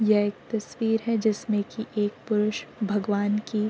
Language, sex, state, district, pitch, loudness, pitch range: Hindi, female, Uttar Pradesh, Deoria, 210 Hz, -27 LUFS, 205-220 Hz